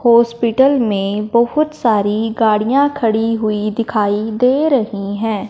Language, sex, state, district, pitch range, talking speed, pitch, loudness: Hindi, male, Punjab, Fazilka, 210-240 Hz, 120 wpm, 225 Hz, -15 LUFS